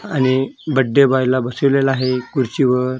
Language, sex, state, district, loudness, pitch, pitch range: Marathi, male, Maharashtra, Gondia, -17 LUFS, 130 Hz, 130-140 Hz